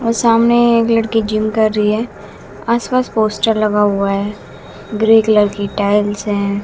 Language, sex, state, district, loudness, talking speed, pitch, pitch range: Hindi, female, Bihar, West Champaran, -14 LUFS, 170 wpm, 215 Hz, 205-230 Hz